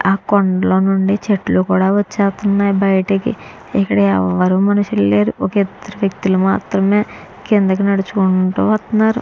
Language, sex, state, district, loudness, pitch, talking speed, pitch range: Telugu, female, Andhra Pradesh, Chittoor, -15 LUFS, 195 Hz, 115 wpm, 185-200 Hz